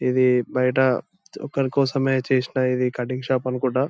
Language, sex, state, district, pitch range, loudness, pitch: Telugu, male, Andhra Pradesh, Anantapur, 125-135 Hz, -22 LUFS, 130 Hz